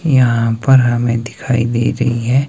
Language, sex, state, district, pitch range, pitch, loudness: Hindi, male, Himachal Pradesh, Shimla, 115-130 Hz, 120 Hz, -14 LUFS